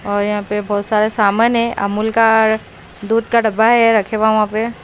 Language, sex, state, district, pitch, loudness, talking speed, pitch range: Hindi, female, Haryana, Rohtak, 220 Hz, -15 LUFS, 225 wpm, 210-225 Hz